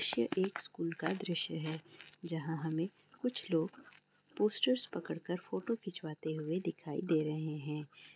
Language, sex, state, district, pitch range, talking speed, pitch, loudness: Maithili, female, Bihar, Araria, 155-190 Hz, 145 wpm, 165 Hz, -38 LUFS